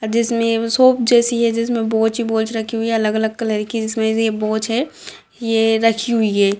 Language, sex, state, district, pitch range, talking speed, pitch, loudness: Hindi, female, Bihar, Madhepura, 220-230 Hz, 210 wpm, 225 Hz, -17 LUFS